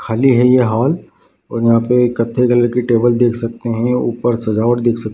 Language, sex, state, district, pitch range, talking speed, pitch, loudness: Hindi, male, Bihar, Madhepura, 115-125 Hz, 210 wpm, 120 Hz, -14 LUFS